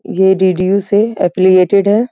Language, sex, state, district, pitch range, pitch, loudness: Hindi, female, Uttar Pradesh, Gorakhpur, 185-200 Hz, 190 Hz, -12 LUFS